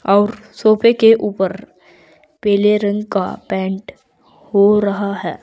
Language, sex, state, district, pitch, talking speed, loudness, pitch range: Hindi, female, Uttar Pradesh, Saharanpur, 205 Hz, 120 wpm, -16 LUFS, 195-210 Hz